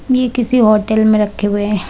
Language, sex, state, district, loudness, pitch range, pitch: Hindi, female, Uttar Pradesh, Budaun, -14 LUFS, 210-245 Hz, 215 Hz